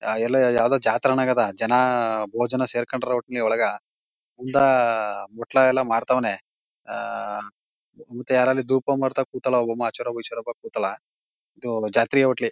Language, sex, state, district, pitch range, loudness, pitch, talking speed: Kannada, male, Karnataka, Mysore, 115-130 Hz, -22 LUFS, 125 Hz, 95 wpm